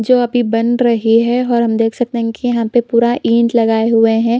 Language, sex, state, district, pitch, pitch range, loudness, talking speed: Hindi, female, Chhattisgarh, Bilaspur, 235 Hz, 225-240 Hz, -14 LUFS, 245 wpm